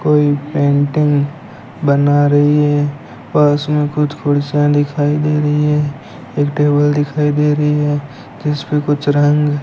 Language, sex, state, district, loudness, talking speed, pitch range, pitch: Hindi, male, Rajasthan, Bikaner, -15 LUFS, 145 wpm, 145-150 Hz, 145 Hz